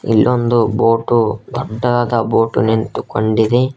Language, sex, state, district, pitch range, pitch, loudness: Kannada, male, Karnataka, Koppal, 110-120 Hz, 115 Hz, -15 LUFS